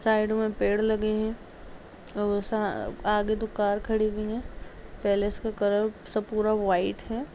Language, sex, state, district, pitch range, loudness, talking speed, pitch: Hindi, female, Chhattisgarh, Kabirdham, 205-220 Hz, -27 LUFS, 165 wpm, 215 Hz